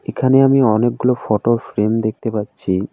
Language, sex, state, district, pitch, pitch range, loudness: Bengali, male, West Bengal, Alipurduar, 115 Hz, 105-125 Hz, -16 LUFS